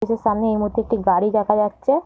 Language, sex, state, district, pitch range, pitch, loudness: Bengali, female, West Bengal, Jhargram, 210-230 Hz, 215 Hz, -19 LUFS